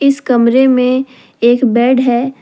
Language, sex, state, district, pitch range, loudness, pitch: Hindi, female, Jharkhand, Deoghar, 240-265 Hz, -11 LUFS, 255 Hz